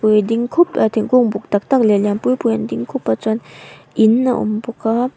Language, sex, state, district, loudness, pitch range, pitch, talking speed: Mizo, female, Mizoram, Aizawl, -17 LUFS, 210-245 Hz, 220 Hz, 210 wpm